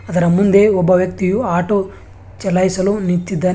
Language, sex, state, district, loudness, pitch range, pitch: Kannada, male, Karnataka, Bangalore, -15 LUFS, 175-195 Hz, 185 Hz